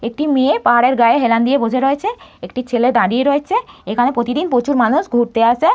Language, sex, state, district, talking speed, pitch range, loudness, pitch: Bengali, female, West Bengal, Malda, 190 wpm, 240-280 Hz, -15 LUFS, 250 Hz